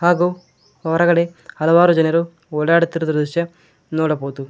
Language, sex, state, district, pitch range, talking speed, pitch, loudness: Kannada, male, Karnataka, Koppal, 155-170 Hz, 95 wpm, 165 Hz, -18 LUFS